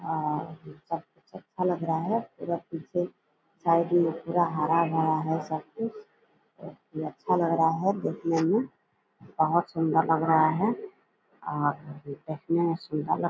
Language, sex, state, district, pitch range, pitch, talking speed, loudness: Angika, female, Bihar, Purnia, 155-175 Hz, 165 Hz, 150 wpm, -28 LUFS